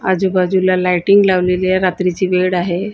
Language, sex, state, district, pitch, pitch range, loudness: Marathi, female, Maharashtra, Gondia, 185 Hz, 180-190 Hz, -14 LUFS